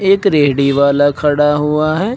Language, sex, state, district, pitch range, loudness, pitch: Hindi, male, Uttar Pradesh, Shamli, 145-155 Hz, -13 LUFS, 150 Hz